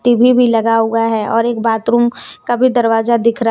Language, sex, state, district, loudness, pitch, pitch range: Hindi, female, Jharkhand, Deoghar, -13 LUFS, 230 Hz, 225-240 Hz